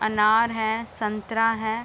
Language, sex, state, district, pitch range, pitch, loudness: Hindi, female, Bihar, East Champaran, 215-225 Hz, 220 Hz, -23 LUFS